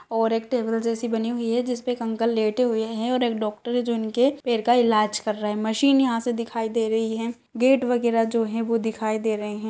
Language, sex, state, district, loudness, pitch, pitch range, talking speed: Hindi, female, Chhattisgarh, Kabirdham, -23 LUFS, 230 Hz, 220-240 Hz, 260 wpm